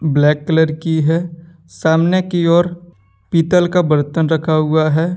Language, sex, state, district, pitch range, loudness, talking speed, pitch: Hindi, male, Jharkhand, Deoghar, 155-175 Hz, -15 LUFS, 150 wpm, 160 Hz